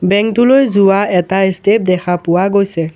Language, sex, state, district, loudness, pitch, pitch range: Assamese, male, Assam, Sonitpur, -12 LUFS, 195 Hz, 180-205 Hz